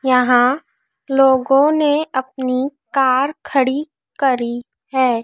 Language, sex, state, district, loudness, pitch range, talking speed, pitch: Hindi, female, Madhya Pradesh, Dhar, -17 LUFS, 255-280 Hz, 90 wpm, 265 Hz